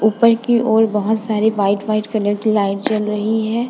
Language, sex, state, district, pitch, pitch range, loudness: Hindi, female, Uttar Pradesh, Budaun, 215 Hz, 210-225 Hz, -17 LUFS